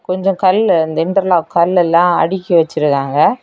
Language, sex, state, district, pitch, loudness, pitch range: Tamil, female, Tamil Nadu, Kanyakumari, 175 Hz, -13 LUFS, 165-185 Hz